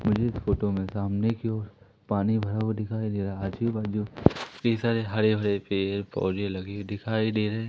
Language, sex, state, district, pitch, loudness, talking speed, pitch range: Hindi, male, Madhya Pradesh, Umaria, 105 Hz, -28 LUFS, 205 wpm, 100-110 Hz